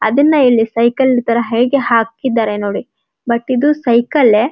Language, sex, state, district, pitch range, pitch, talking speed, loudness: Kannada, female, Karnataka, Dharwad, 230-260 Hz, 235 Hz, 145 wpm, -13 LUFS